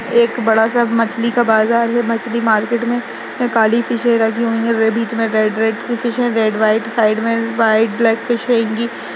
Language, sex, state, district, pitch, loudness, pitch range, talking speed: Hindi, female, Uttarakhand, Uttarkashi, 230 Hz, -15 LUFS, 220-235 Hz, 210 wpm